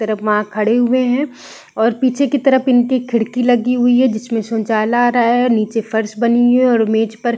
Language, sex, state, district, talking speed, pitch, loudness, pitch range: Hindi, female, Chhattisgarh, Balrampur, 235 wpm, 240 Hz, -15 LUFS, 220-250 Hz